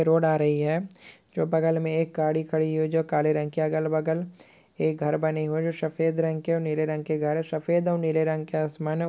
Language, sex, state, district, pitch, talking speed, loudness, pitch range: Hindi, male, Uttar Pradesh, Hamirpur, 160 Hz, 255 wpm, -26 LUFS, 155-160 Hz